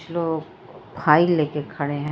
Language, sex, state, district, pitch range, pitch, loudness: Hindi, female, Jharkhand, Palamu, 150-165 Hz, 155 Hz, -22 LUFS